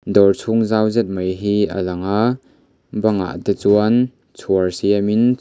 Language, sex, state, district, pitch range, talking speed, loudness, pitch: Mizo, male, Mizoram, Aizawl, 95-115 Hz, 155 wpm, -18 LUFS, 105 Hz